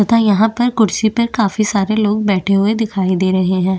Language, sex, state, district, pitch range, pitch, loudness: Hindi, female, Chhattisgarh, Bastar, 195-220 Hz, 210 Hz, -15 LUFS